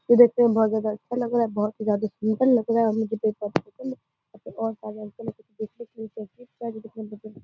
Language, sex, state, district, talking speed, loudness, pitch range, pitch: Hindi, female, Bihar, Purnia, 135 wpm, -24 LUFS, 215-235 Hz, 220 Hz